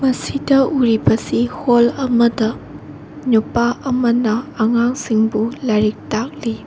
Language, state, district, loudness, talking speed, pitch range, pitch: Manipuri, Manipur, Imphal West, -17 LUFS, 90 wpm, 220-250 Hz, 235 Hz